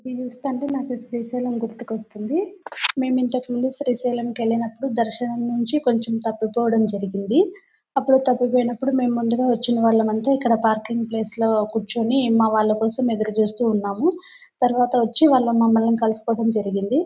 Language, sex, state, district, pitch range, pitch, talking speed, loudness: Telugu, female, Andhra Pradesh, Anantapur, 225-255 Hz, 235 Hz, 135 wpm, -21 LUFS